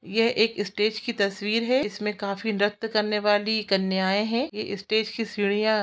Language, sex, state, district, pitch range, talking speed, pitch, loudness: Hindi, female, Chhattisgarh, Sukma, 205-220 Hz, 175 wpm, 210 Hz, -25 LUFS